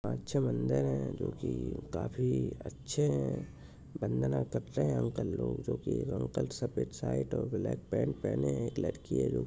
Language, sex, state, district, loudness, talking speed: Hindi, male, Maharashtra, Nagpur, -34 LUFS, 165 wpm